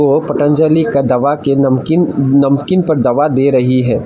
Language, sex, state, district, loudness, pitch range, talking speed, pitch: Hindi, male, Assam, Kamrup Metropolitan, -12 LUFS, 130-155 Hz, 165 wpm, 140 Hz